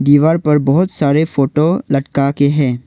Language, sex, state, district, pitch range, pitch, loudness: Hindi, male, Arunachal Pradesh, Longding, 140-155 Hz, 145 Hz, -14 LUFS